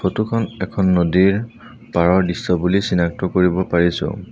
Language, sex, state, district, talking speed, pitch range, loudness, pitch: Assamese, male, Assam, Sonitpur, 140 wpm, 90-100 Hz, -18 LUFS, 95 Hz